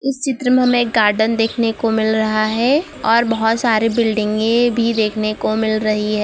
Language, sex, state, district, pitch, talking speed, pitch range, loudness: Hindi, female, Gujarat, Valsad, 225 Hz, 200 wpm, 215-235 Hz, -16 LUFS